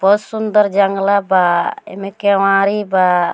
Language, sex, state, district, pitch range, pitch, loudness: Bhojpuri, female, Bihar, Muzaffarpur, 190-200 Hz, 195 Hz, -14 LUFS